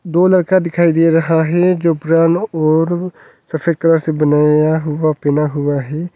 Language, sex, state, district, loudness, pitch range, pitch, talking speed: Hindi, male, Arunachal Pradesh, Longding, -14 LUFS, 155-170 Hz, 165 Hz, 165 wpm